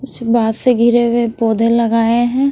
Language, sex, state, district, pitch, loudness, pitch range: Hindi, female, Bihar, West Champaran, 235 Hz, -14 LUFS, 230-240 Hz